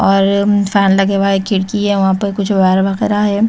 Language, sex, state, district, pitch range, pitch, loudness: Hindi, female, Chhattisgarh, Raipur, 195-205 Hz, 200 Hz, -13 LUFS